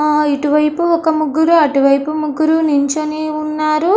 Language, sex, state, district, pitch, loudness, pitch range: Telugu, female, Andhra Pradesh, Anantapur, 305 Hz, -14 LUFS, 300-315 Hz